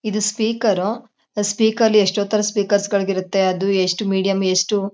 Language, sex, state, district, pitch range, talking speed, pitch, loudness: Kannada, female, Karnataka, Chamarajanagar, 195-215 Hz, 145 wpm, 205 Hz, -18 LUFS